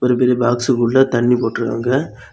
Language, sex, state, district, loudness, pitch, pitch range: Tamil, male, Tamil Nadu, Kanyakumari, -16 LUFS, 125 Hz, 120-125 Hz